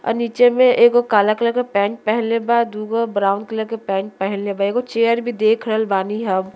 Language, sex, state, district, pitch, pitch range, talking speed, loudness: Bhojpuri, female, Uttar Pradesh, Deoria, 220 Hz, 200-235 Hz, 230 wpm, -18 LUFS